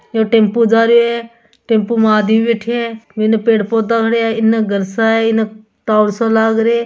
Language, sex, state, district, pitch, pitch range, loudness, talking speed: Hindi, female, Rajasthan, Churu, 225 Hz, 220-230 Hz, -14 LUFS, 220 wpm